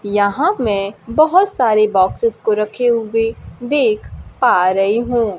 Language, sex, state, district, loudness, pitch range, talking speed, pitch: Hindi, female, Bihar, Kaimur, -16 LUFS, 205-260 Hz, 135 wpm, 225 Hz